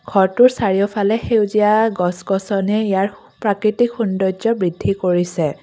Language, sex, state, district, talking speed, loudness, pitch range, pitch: Assamese, female, Assam, Kamrup Metropolitan, 105 wpm, -17 LUFS, 190-215 Hz, 200 Hz